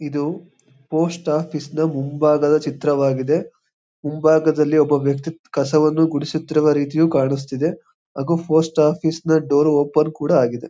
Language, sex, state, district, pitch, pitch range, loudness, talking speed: Kannada, male, Karnataka, Mysore, 150 Hz, 145-160 Hz, -19 LUFS, 120 wpm